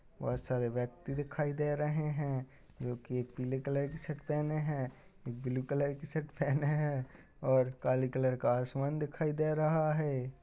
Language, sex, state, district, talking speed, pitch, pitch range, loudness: Hindi, male, Uttar Pradesh, Budaun, 180 wpm, 140 Hz, 130-150 Hz, -35 LUFS